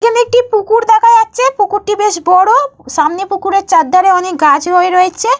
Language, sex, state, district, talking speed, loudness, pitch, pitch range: Bengali, female, Jharkhand, Jamtara, 165 wpm, -10 LUFS, 390 Hz, 360-455 Hz